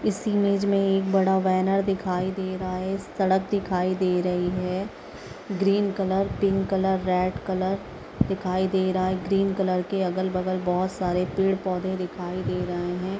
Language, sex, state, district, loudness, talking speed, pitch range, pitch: Hindi, female, Chhattisgarh, Raigarh, -25 LUFS, 165 wpm, 185-195 Hz, 190 Hz